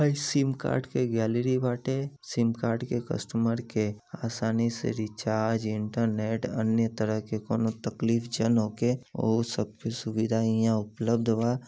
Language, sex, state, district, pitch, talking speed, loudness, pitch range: Bhojpuri, male, Uttar Pradesh, Deoria, 115 Hz, 150 wpm, -28 LUFS, 110-120 Hz